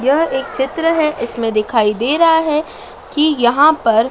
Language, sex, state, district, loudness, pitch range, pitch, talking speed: Hindi, female, Madhya Pradesh, Dhar, -15 LUFS, 235-310 Hz, 270 Hz, 175 wpm